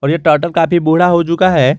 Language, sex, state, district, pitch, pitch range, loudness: Hindi, male, Jharkhand, Garhwa, 165 Hz, 155-175 Hz, -12 LUFS